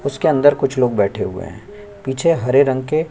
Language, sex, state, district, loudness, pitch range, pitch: Hindi, male, Chhattisgarh, Sukma, -17 LUFS, 130-160 Hz, 140 Hz